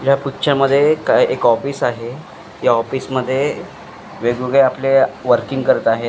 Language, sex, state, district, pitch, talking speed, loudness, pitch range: Marathi, male, Maharashtra, Mumbai Suburban, 130 Hz, 150 wpm, -16 LUFS, 120-140 Hz